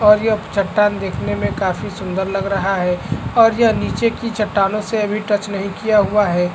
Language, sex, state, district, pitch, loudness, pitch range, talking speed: Hindi, male, Chhattisgarh, Raigarh, 200 Hz, -18 LUFS, 190-210 Hz, 220 wpm